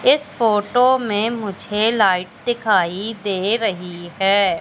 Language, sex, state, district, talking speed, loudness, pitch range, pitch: Hindi, female, Madhya Pradesh, Katni, 115 wpm, -18 LUFS, 195-230 Hz, 210 Hz